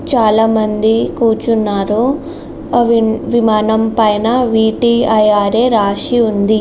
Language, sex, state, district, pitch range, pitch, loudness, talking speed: Telugu, female, Andhra Pradesh, Srikakulam, 215-235 Hz, 225 Hz, -13 LUFS, 65 wpm